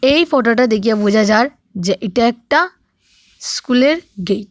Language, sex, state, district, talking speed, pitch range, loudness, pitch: Bengali, female, Assam, Hailakandi, 145 wpm, 215-275 Hz, -15 LUFS, 235 Hz